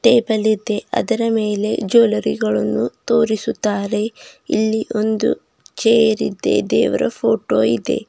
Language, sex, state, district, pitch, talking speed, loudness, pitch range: Kannada, female, Karnataka, Bidar, 220 Hz, 105 wpm, -18 LUFS, 210-230 Hz